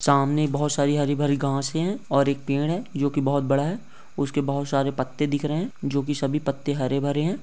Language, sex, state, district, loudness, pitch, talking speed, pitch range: Hindi, male, Jharkhand, Jamtara, -24 LUFS, 140 Hz, 225 wpm, 140-150 Hz